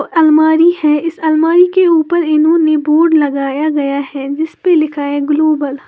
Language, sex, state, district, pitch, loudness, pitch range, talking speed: Hindi, female, Uttar Pradesh, Lalitpur, 310 Hz, -12 LUFS, 290-330 Hz, 175 wpm